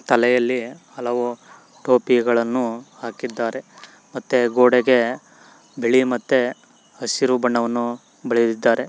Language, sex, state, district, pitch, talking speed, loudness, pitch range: Kannada, male, Karnataka, Mysore, 120 Hz, 75 wpm, -20 LUFS, 120-125 Hz